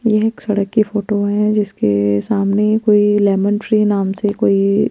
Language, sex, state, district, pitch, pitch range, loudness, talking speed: Hindi, female, Chandigarh, Chandigarh, 205 Hz, 200-210 Hz, -15 LUFS, 195 wpm